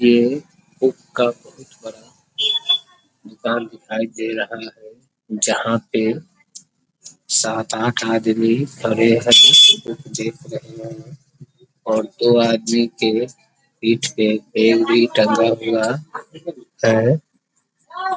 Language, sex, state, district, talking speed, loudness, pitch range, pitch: Hindi, male, Bihar, East Champaran, 100 wpm, -16 LUFS, 110-145 Hz, 120 Hz